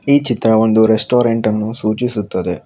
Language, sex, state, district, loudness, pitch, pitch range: Kannada, male, Karnataka, Bangalore, -15 LUFS, 110 Hz, 105-120 Hz